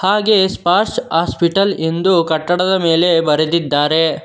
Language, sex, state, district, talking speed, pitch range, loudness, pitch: Kannada, male, Karnataka, Bangalore, 100 wpm, 160-190 Hz, -14 LUFS, 170 Hz